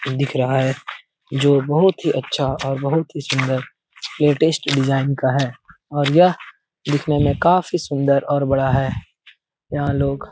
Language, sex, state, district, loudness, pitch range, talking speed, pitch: Hindi, male, Bihar, Lakhisarai, -19 LUFS, 135-150 Hz, 155 wpm, 140 Hz